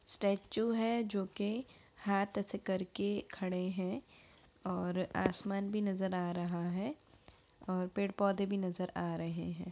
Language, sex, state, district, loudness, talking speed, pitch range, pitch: Hindi, female, Bihar, Gaya, -37 LUFS, 140 wpm, 180-200 Hz, 195 Hz